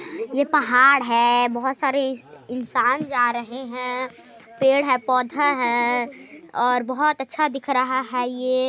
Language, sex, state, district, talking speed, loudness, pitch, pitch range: Hindi, female, Chhattisgarh, Sarguja, 140 wpm, -20 LUFS, 255 Hz, 245-275 Hz